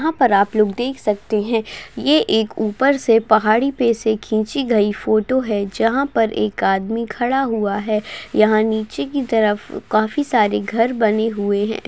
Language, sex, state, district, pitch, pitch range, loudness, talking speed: Hindi, female, Bihar, Begusarai, 220 Hz, 210-245 Hz, -18 LUFS, 170 wpm